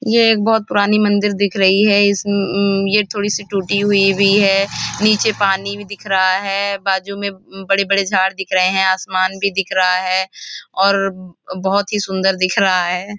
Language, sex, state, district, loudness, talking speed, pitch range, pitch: Hindi, female, Maharashtra, Nagpur, -16 LUFS, 195 wpm, 190-205 Hz, 195 Hz